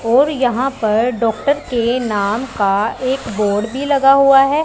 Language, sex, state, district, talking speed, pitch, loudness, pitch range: Hindi, female, Punjab, Pathankot, 170 wpm, 250 Hz, -15 LUFS, 215-275 Hz